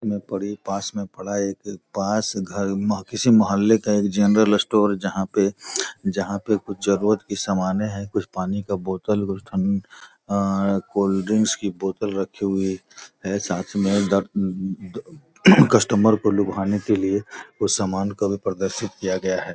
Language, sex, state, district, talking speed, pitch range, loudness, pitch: Hindi, male, Bihar, Gopalganj, 160 wpm, 95-105 Hz, -22 LUFS, 100 Hz